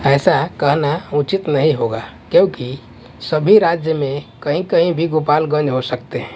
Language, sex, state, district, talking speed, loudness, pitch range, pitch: Hindi, male, Punjab, Kapurthala, 150 wpm, -16 LUFS, 130-160 Hz, 145 Hz